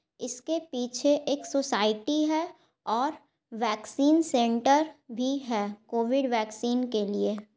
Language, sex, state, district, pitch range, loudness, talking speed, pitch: Hindi, female, Bihar, Gaya, 225-290 Hz, -28 LUFS, 120 wpm, 250 Hz